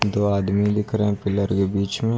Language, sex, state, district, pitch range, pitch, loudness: Hindi, male, Uttar Pradesh, Lucknow, 100-105 Hz, 100 Hz, -22 LUFS